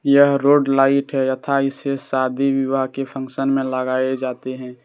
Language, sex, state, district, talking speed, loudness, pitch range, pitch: Hindi, male, Jharkhand, Deoghar, 175 wpm, -19 LUFS, 130-140 Hz, 135 Hz